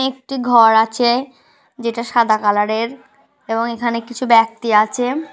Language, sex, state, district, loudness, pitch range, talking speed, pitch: Bengali, female, West Bengal, North 24 Parganas, -16 LUFS, 225-250 Hz, 135 wpm, 235 Hz